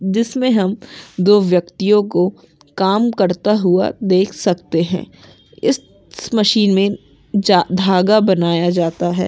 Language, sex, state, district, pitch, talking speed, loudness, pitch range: Hindi, female, West Bengal, Kolkata, 190 Hz, 115 wpm, -16 LUFS, 180-210 Hz